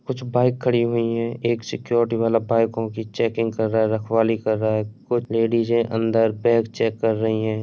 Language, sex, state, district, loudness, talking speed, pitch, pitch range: Hindi, male, Uttar Pradesh, Etah, -21 LUFS, 205 wpm, 115 Hz, 110-115 Hz